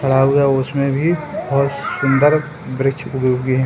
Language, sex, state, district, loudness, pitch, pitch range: Hindi, male, Bihar, Jahanabad, -17 LUFS, 140 Hz, 135-145 Hz